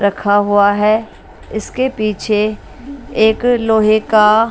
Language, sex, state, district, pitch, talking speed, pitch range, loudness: Hindi, female, Bihar, West Champaran, 215 Hz, 105 wpm, 210-225 Hz, -14 LUFS